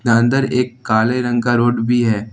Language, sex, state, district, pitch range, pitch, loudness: Hindi, male, Jharkhand, Ranchi, 115-125 Hz, 120 Hz, -16 LUFS